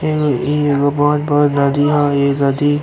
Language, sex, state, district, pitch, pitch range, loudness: Bhojpuri, male, Uttar Pradesh, Ghazipur, 145 Hz, 140-150 Hz, -15 LUFS